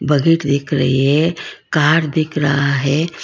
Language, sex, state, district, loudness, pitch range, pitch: Hindi, female, Karnataka, Bangalore, -16 LUFS, 140-160 Hz, 145 Hz